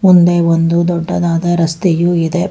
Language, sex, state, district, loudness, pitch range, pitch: Kannada, female, Karnataka, Bangalore, -13 LUFS, 170-175 Hz, 175 Hz